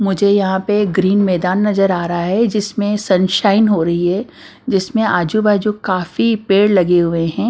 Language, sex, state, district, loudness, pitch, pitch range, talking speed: Hindi, female, Bihar, Patna, -15 LUFS, 195 Hz, 185-210 Hz, 170 wpm